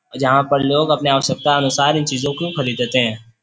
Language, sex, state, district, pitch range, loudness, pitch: Hindi, male, Uttar Pradesh, Varanasi, 130-145 Hz, -17 LUFS, 140 Hz